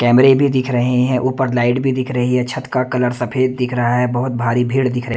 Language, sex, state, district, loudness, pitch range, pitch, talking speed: Hindi, male, Bihar, Katihar, -16 LUFS, 120-130 Hz, 125 Hz, 265 wpm